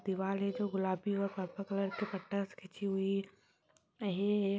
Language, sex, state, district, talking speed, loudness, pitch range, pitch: Hindi, female, Uttar Pradesh, Jyotiba Phule Nagar, 195 wpm, -37 LUFS, 195-200 Hz, 195 Hz